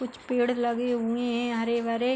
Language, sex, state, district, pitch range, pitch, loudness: Hindi, female, Uttar Pradesh, Hamirpur, 235-245 Hz, 240 Hz, -27 LUFS